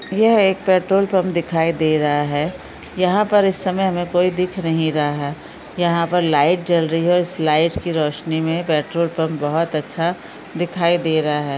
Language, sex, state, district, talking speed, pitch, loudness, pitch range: Hindi, female, Maharashtra, Solapur, 185 wpm, 170 Hz, -18 LUFS, 155-180 Hz